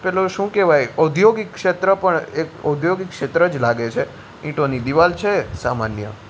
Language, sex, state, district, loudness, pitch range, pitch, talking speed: Gujarati, male, Gujarat, Gandhinagar, -18 LUFS, 130-190 Hz, 165 Hz, 150 wpm